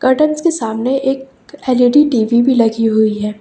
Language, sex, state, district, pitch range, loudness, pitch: Hindi, female, Uttar Pradesh, Lucknow, 225-270 Hz, -14 LUFS, 250 Hz